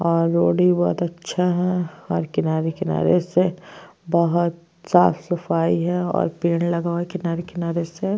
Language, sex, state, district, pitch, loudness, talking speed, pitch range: Hindi, female, Uttar Pradesh, Jyotiba Phule Nagar, 170 Hz, -21 LUFS, 155 wpm, 165-180 Hz